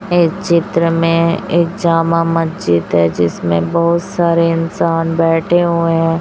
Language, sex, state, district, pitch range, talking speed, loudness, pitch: Hindi, female, Chhattisgarh, Raipur, 165-170 Hz, 135 wpm, -14 LUFS, 165 Hz